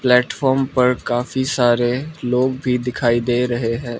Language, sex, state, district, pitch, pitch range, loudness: Hindi, male, Arunachal Pradesh, Lower Dibang Valley, 125 Hz, 120-130 Hz, -18 LUFS